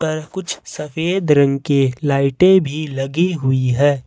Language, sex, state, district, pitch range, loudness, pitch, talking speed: Hindi, male, Jharkhand, Ranchi, 135-160 Hz, -17 LUFS, 150 Hz, 145 wpm